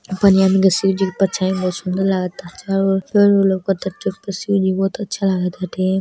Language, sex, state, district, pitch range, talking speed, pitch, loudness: Bhojpuri, male, Uttar Pradesh, Deoria, 185-195 Hz, 200 wpm, 190 Hz, -18 LUFS